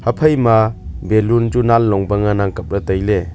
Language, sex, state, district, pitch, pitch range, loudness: Wancho, male, Arunachal Pradesh, Longding, 110 Hz, 100-115 Hz, -15 LUFS